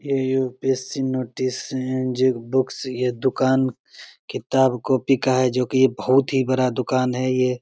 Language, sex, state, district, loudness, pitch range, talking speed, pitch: Hindi, male, Bihar, Begusarai, -21 LUFS, 125-130 Hz, 160 wpm, 130 Hz